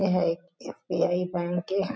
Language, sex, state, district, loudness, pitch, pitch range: Chhattisgarhi, female, Chhattisgarh, Jashpur, -28 LUFS, 180 Hz, 175-190 Hz